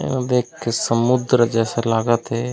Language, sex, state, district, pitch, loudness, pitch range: Chhattisgarhi, male, Chhattisgarh, Raigarh, 120 Hz, -19 LUFS, 115-125 Hz